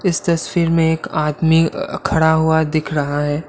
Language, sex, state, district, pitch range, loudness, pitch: Hindi, male, Assam, Kamrup Metropolitan, 155-165 Hz, -17 LUFS, 160 Hz